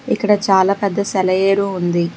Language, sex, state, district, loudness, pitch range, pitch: Telugu, female, Telangana, Hyderabad, -16 LUFS, 185-200 Hz, 195 Hz